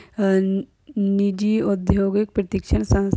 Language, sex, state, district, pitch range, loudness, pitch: Hindi, female, Uttar Pradesh, Etah, 195-205 Hz, -21 LUFS, 200 Hz